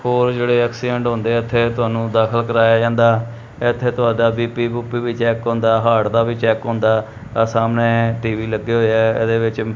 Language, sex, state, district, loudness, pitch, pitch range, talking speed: Punjabi, male, Punjab, Kapurthala, -17 LUFS, 115 Hz, 115-120 Hz, 180 wpm